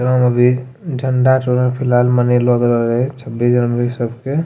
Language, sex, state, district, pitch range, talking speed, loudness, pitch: Angika, male, Bihar, Bhagalpur, 120-130 Hz, 135 wpm, -15 LUFS, 125 Hz